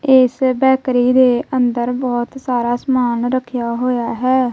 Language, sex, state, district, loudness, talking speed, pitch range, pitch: Punjabi, female, Punjab, Kapurthala, -16 LUFS, 130 wpm, 240-260 Hz, 250 Hz